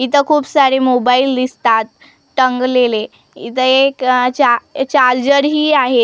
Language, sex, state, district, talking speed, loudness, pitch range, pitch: Marathi, female, Maharashtra, Gondia, 140 wpm, -13 LUFS, 250-280 Hz, 255 Hz